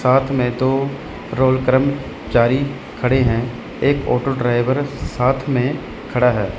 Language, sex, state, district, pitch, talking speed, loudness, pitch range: Hindi, male, Chandigarh, Chandigarh, 130 Hz, 125 wpm, -18 LUFS, 125-135 Hz